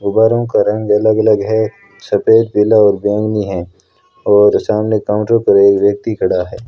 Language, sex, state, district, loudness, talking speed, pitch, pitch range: Hindi, female, Rajasthan, Bikaner, -13 LUFS, 170 wpm, 105 Hz, 100-110 Hz